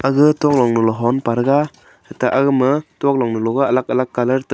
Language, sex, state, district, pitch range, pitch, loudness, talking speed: Wancho, male, Arunachal Pradesh, Longding, 120-140 Hz, 130 Hz, -17 LUFS, 185 wpm